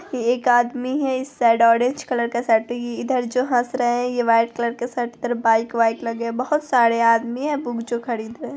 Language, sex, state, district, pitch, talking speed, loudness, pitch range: Hindi, female, Bihar, Araria, 240 Hz, 240 wpm, -20 LUFS, 230-250 Hz